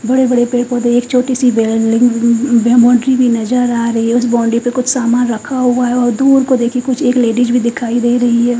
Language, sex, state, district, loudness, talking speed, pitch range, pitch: Hindi, female, Bihar, Katihar, -12 LUFS, 245 wpm, 235-250 Hz, 245 Hz